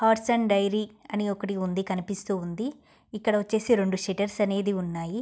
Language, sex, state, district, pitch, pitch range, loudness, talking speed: Telugu, female, Andhra Pradesh, Guntur, 205 Hz, 195-215 Hz, -27 LUFS, 150 wpm